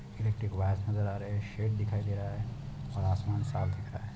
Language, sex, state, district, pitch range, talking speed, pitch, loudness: Hindi, male, Uttar Pradesh, Deoria, 100-110 Hz, 245 wpm, 105 Hz, -34 LUFS